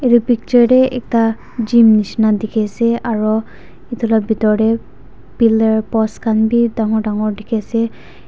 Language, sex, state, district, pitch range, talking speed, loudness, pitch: Nagamese, female, Nagaland, Dimapur, 215-235 Hz, 150 wpm, -15 LUFS, 225 Hz